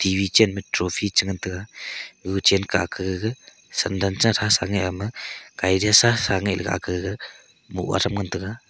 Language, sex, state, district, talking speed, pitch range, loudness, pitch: Wancho, male, Arunachal Pradesh, Longding, 165 wpm, 95-105 Hz, -22 LUFS, 100 Hz